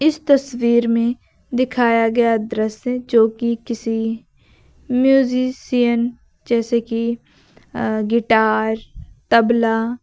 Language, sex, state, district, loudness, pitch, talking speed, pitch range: Hindi, female, Uttar Pradesh, Lucknow, -18 LUFS, 235 Hz, 85 wpm, 225-250 Hz